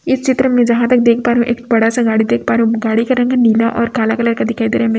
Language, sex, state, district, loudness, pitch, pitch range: Hindi, female, Chhattisgarh, Raipur, -14 LUFS, 235 Hz, 225-245 Hz